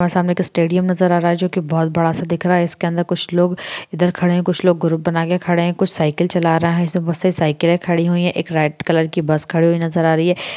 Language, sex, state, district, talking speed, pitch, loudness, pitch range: Hindi, female, Bihar, Madhepura, 275 wpm, 175 Hz, -17 LUFS, 165-180 Hz